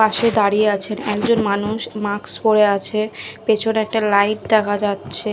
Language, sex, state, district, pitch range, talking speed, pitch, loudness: Bengali, female, Odisha, Khordha, 205-220 Hz, 145 wpm, 210 Hz, -18 LUFS